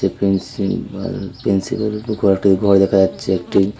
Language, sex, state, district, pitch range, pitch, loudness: Bengali, male, Tripura, Unakoti, 95-100 Hz, 100 Hz, -17 LUFS